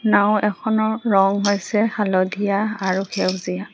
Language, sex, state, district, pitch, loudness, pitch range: Assamese, female, Assam, Hailakandi, 205 Hz, -20 LUFS, 195-215 Hz